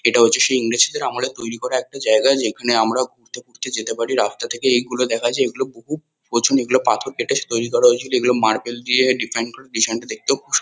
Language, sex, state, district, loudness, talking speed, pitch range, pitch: Bengali, male, West Bengal, Kolkata, -19 LUFS, 210 wpm, 115-130 Hz, 120 Hz